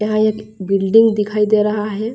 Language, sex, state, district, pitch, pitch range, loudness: Hindi, female, Bihar, Darbhanga, 215 Hz, 210-215 Hz, -16 LUFS